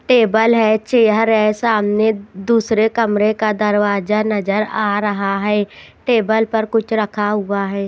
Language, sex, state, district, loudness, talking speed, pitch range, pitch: Hindi, female, Haryana, Jhajjar, -16 LUFS, 145 wpm, 205-220 Hz, 215 Hz